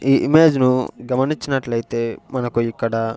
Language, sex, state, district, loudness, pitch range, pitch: Telugu, male, Andhra Pradesh, Sri Satya Sai, -19 LUFS, 115-135 Hz, 125 Hz